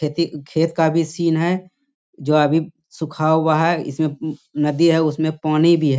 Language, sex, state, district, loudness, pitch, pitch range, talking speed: Hindi, male, Bihar, Bhagalpur, -19 LUFS, 160 Hz, 155-165 Hz, 200 wpm